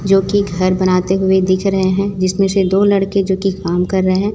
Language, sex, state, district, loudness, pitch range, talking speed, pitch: Hindi, female, Chhattisgarh, Raipur, -15 LUFS, 185-195 Hz, 250 wpm, 190 Hz